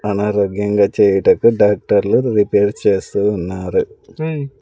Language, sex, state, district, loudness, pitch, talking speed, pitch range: Telugu, male, Andhra Pradesh, Sri Satya Sai, -16 LUFS, 105 Hz, 80 wpm, 100-125 Hz